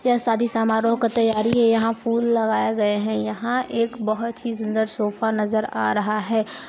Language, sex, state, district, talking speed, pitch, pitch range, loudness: Hindi, female, Chhattisgarh, Sarguja, 190 wpm, 225 Hz, 215-230 Hz, -22 LUFS